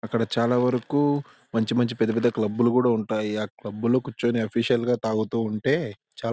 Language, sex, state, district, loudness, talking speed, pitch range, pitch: Telugu, male, Andhra Pradesh, Anantapur, -24 LUFS, 180 wpm, 110-125 Hz, 115 Hz